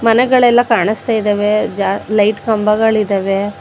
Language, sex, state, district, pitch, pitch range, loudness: Kannada, female, Karnataka, Bangalore, 215 Hz, 205-225 Hz, -14 LUFS